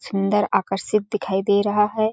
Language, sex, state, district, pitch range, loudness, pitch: Hindi, female, Chhattisgarh, Balrampur, 195-210 Hz, -21 LUFS, 205 Hz